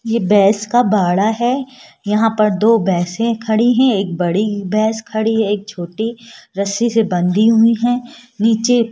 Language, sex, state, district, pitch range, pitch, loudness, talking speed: Hindi, female, Rajasthan, Jaipur, 205-230 Hz, 220 Hz, -15 LUFS, 160 wpm